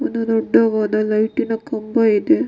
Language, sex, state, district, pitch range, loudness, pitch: Kannada, female, Karnataka, Dakshina Kannada, 215-230 Hz, -18 LUFS, 225 Hz